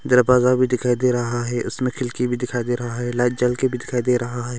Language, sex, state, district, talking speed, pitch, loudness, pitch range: Hindi, male, Arunachal Pradesh, Longding, 275 wpm, 125 Hz, -21 LUFS, 120-125 Hz